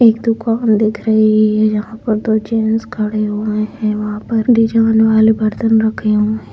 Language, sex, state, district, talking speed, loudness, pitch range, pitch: Hindi, female, Bihar, Madhepura, 185 wpm, -14 LUFS, 215-225 Hz, 220 Hz